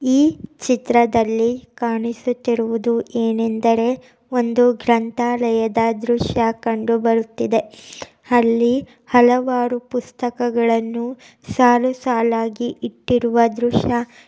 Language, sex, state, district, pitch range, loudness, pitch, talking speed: Kannada, female, Karnataka, Raichur, 230-245 Hz, -18 LUFS, 235 Hz, 65 wpm